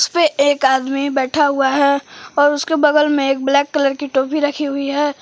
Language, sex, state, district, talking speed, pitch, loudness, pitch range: Hindi, female, Jharkhand, Palamu, 205 wpm, 285 Hz, -16 LUFS, 275-295 Hz